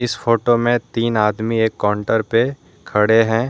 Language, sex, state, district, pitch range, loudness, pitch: Hindi, male, Jharkhand, Deoghar, 110-120 Hz, -18 LUFS, 115 Hz